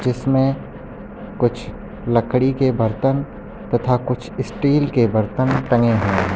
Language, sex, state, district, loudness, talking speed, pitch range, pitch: Hindi, male, Uttar Pradesh, Lucknow, -19 LUFS, 115 wpm, 115-130 Hz, 125 Hz